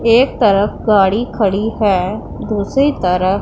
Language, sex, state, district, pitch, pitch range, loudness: Hindi, female, Punjab, Pathankot, 205 Hz, 195-230 Hz, -15 LUFS